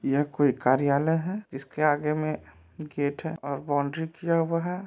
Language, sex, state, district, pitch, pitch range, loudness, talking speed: Maithili, male, Bihar, Supaul, 150 Hz, 140-160 Hz, -27 LUFS, 170 wpm